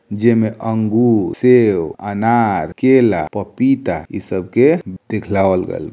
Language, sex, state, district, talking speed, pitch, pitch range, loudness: Hindi, male, Bihar, East Champaran, 100 wpm, 110 Hz, 105-120 Hz, -16 LUFS